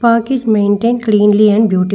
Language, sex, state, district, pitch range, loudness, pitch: English, female, Karnataka, Bangalore, 205-235 Hz, -12 LUFS, 215 Hz